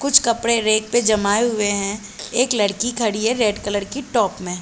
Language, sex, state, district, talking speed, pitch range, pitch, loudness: Hindi, female, Chhattisgarh, Bilaspur, 205 wpm, 205-235 Hz, 215 Hz, -19 LUFS